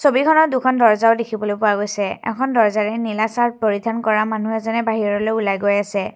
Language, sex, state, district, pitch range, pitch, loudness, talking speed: Assamese, female, Assam, Kamrup Metropolitan, 210-230 Hz, 220 Hz, -18 LUFS, 175 wpm